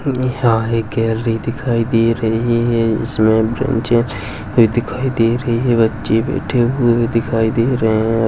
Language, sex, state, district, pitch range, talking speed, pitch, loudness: Hindi, male, Uttar Pradesh, Jalaun, 115-120 Hz, 140 wpm, 115 Hz, -16 LUFS